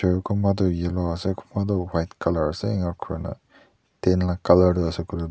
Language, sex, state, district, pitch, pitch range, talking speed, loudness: Nagamese, male, Nagaland, Dimapur, 90 Hz, 85-95 Hz, 205 wpm, -23 LUFS